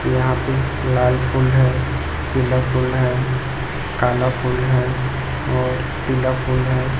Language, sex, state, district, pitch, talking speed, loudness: Hindi, male, Chhattisgarh, Raipur, 125 Hz, 130 wpm, -19 LUFS